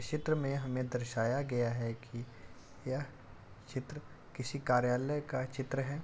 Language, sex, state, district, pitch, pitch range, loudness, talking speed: Hindi, male, Uttar Pradesh, Deoria, 130 Hz, 120-140 Hz, -36 LUFS, 150 wpm